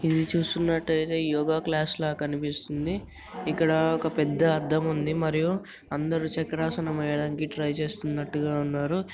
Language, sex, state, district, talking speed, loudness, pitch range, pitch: Telugu, male, Telangana, Nalgonda, 130 wpm, -27 LUFS, 150-160 Hz, 155 Hz